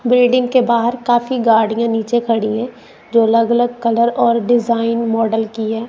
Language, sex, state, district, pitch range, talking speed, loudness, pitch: Hindi, female, Punjab, Kapurthala, 225-240 Hz, 165 wpm, -15 LUFS, 235 Hz